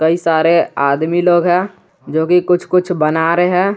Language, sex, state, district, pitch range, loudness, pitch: Hindi, male, Jharkhand, Garhwa, 160-180 Hz, -14 LUFS, 175 Hz